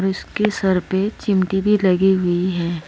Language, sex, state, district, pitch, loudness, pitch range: Hindi, female, Uttar Pradesh, Saharanpur, 190 Hz, -19 LUFS, 185-200 Hz